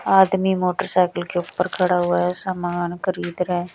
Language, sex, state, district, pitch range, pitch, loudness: Hindi, female, Bihar, West Champaran, 175-185 Hz, 180 Hz, -21 LUFS